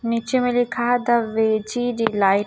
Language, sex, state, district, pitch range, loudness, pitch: Hindi, female, Chhattisgarh, Raipur, 220-245 Hz, -20 LUFS, 230 Hz